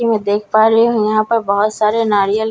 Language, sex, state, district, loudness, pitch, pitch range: Hindi, female, Bihar, Katihar, -14 LUFS, 215 Hz, 210-225 Hz